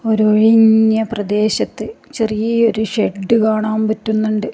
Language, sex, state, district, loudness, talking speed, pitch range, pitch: Malayalam, female, Kerala, Kasaragod, -15 LUFS, 90 wpm, 215-220 Hz, 220 Hz